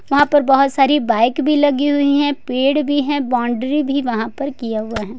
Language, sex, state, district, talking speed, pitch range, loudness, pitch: Hindi, female, Jharkhand, Ranchi, 220 wpm, 245-290 Hz, -16 LUFS, 275 Hz